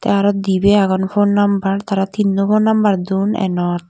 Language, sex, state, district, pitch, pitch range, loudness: Chakma, female, Tripura, Dhalai, 200 Hz, 190-205 Hz, -16 LUFS